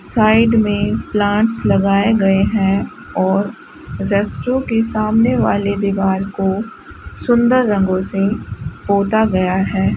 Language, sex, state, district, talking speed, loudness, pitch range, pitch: Hindi, female, Rajasthan, Bikaner, 115 wpm, -16 LUFS, 195-220 Hz, 205 Hz